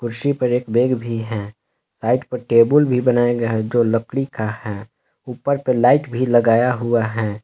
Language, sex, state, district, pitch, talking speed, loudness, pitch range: Hindi, male, Jharkhand, Palamu, 120 Hz, 195 wpm, -18 LUFS, 115-125 Hz